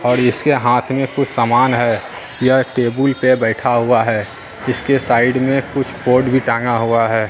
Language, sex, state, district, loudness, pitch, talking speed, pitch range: Hindi, male, Bihar, Katihar, -15 LUFS, 125 Hz, 180 wpm, 115-130 Hz